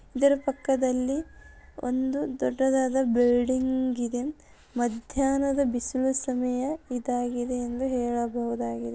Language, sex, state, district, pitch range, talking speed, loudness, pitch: Kannada, female, Karnataka, Dharwad, 245-270 Hz, 80 wpm, -27 LUFS, 255 Hz